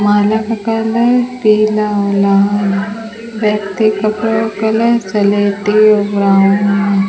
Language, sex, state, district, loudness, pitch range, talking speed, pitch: Hindi, female, Rajasthan, Bikaner, -13 LUFS, 200-225 Hz, 100 wpm, 210 Hz